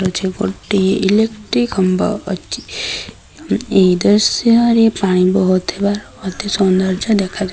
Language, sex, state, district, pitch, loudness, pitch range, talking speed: Odia, female, Odisha, Sambalpur, 195 Hz, -15 LUFS, 185-210 Hz, 105 wpm